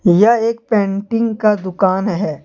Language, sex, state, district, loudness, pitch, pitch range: Hindi, male, Jharkhand, Deoghar, -16 LUFS, 205 Hz, 190-225 Hz